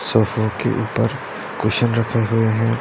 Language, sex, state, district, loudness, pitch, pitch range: Hindi, male, Punjab, Pathankot, -20 LUFS, 115 Hz, 110-120 Hz